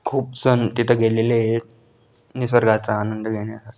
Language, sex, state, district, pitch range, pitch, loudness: Marathi, male, Maharashtra, Dhule, 110-120 Hz, 115 Hz, -20 LUFS